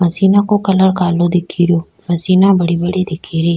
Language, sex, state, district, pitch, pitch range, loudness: Rajasthani, female, Rajasthan, Nagaur, 175 Hz, 170-190 Hz, -14 LUFS